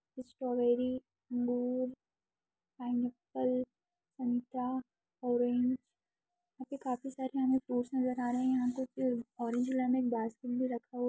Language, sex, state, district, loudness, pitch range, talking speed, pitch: Hindi, female, Uttarakhand, Tehri Garhwal, -35 LUFS, 245-260 Hz, 130 wpm, 250 Hz